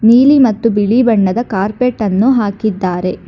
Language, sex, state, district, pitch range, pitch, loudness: Kannada, female, Karnataka, Bangalore, 200-245 Hz, 220 Hz, -12 LUFS